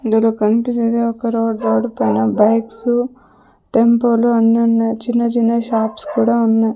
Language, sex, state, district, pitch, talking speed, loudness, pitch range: Telugu, female, Andhra Pradesh, Sri Satya Sai, 230 Hz, 135 wpm, -16 LUFS, 225-235 Hz